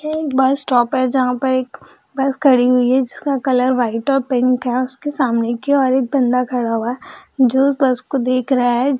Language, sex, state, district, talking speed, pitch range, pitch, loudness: Hindi, female, Bihar, Jahanabad, 225 wpm, 250-270 Hz, 260 Hz, -17 LUFS